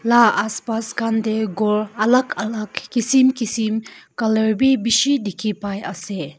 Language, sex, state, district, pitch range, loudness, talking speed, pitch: Nagamese, female, Nagaland, Kohima, 210-235 Hz, -19 LUFS, 140 wpm, 220 Hz